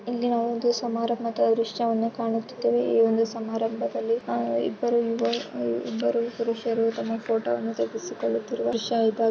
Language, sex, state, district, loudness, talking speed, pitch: Kannada, female, Karnataka, Shimoga, -26 LUFS, 105 wpm, 225 Hz